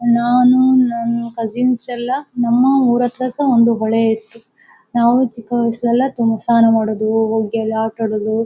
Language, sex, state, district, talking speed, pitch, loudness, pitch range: Kannada, female, Karnataka, Dakshina Kannada, 140 wpm, 235 Hz, -16 LUFS, 225-245 Hz